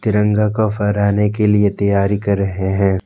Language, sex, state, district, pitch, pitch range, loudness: Hindi, male, Jharkhand, Deoghar, 100 Hz, 100-105 Hz, -16 LUFS